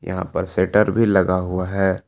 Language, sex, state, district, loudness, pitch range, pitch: Hindi, male, Jharkhand, Palamu, -19 LUFS, 90-105 Hz, 95 Hz